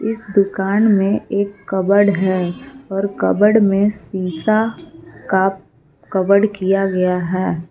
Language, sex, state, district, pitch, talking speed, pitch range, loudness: Hindi, female, Jharkhand, Palamu, 195 Hz, 115 wpm, 190-205 Hz, -17 LUFS